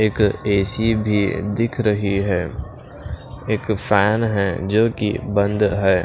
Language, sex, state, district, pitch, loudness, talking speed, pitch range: Hindi, male, Punjab, Pathankot, 105 Hz, -19 LUFS, 130 wpm, 100-110 Hz